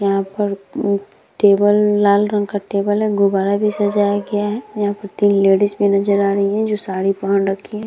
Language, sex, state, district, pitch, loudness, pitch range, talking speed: Hindi, female, Bihar, Vaishali, 205 Hz, -17 LUFS, 200-205 Hz, 215 wpm